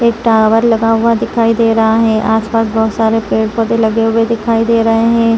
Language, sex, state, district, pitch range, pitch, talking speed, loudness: Hindi, female, Chhattisgarh, Rajnandgaon, 225-230 Hz, 225 Hz, 200 wpm, -12 LUFS